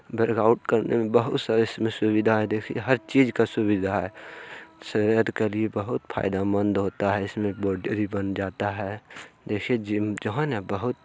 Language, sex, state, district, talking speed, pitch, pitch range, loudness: Hindi, male, Bihar, Bhagalpur, 165 wpm, 110 Hz, 100-115 Hz, -25 LUFS